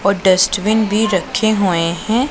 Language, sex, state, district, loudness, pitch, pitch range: Hindi, female, Punjab, Pathankot, -15 LUFS, 200 Hz, 185-220 Hz